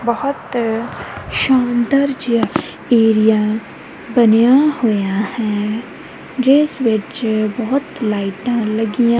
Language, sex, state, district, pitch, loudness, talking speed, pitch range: Punjabi, female, Punjab, Kapurthala, 230 Hz, -16 LUFS, 80 wpm, 220-255 Hz